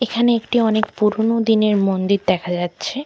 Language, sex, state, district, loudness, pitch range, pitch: Bengali, female, West Bengal, Malda, -18 LUFS, 195-230 Hz, 215 Hz